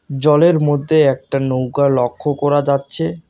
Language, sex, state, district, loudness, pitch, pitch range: Bengali, male, West Bengal, Alipurduar, -16 LUFS, 145 Hz, 135-155 Hz